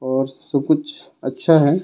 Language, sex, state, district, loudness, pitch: Hindi, male, Jharkhand, Garhwa, -19 LUFS, 145 Hz